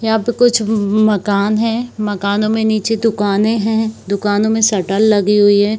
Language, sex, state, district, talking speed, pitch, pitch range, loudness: Hindi, female, Chhattisgarh, Bilaspur, 175 wpm, 215 Hz, 205-220 Hz, -15 LUFS